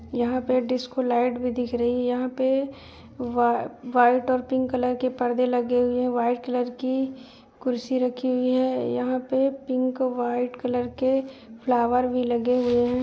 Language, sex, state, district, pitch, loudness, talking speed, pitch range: Hindi, female, Uttar Pradesh, Jyotiba Phule Nagar, 250 Hz, -24 LUFS, 175 wpm, 245-255 Hz